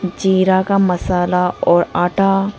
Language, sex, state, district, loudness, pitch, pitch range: Hindi, female, Arunachal Pradesh, Lower Dibang Valley, -15 LUFS, 185 Hz, 180-195 Hz